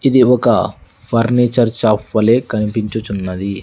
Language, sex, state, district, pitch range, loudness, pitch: Telugu, male, Andhra Pradesh, Sri Satya Sai, 105-120 Hz, -15 LUFS, 110 Hz